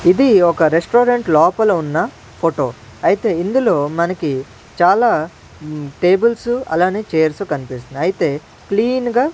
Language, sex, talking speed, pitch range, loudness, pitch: Telugu, male, 120 wpm, 150-230 Hz, -16 LUFS, 175 Hz